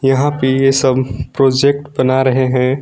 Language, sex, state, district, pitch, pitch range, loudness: Hindi, male, Jharkhand, Garhwa, 130 Hz, 130-135 Hz, -14 LUFS